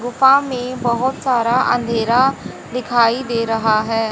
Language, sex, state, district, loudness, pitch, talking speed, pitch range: Hindi, female, Haryana, Charkhi Dadri, -17 LUFS, 240 Hz, 130 wpm, 230-255 Hz